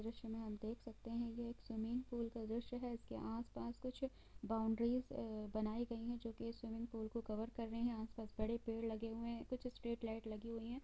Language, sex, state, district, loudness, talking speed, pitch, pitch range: Hindi, female, Bihar, East Champaran, -46 LUFS, 245 wpm, 230 Hz, 220-235 Hz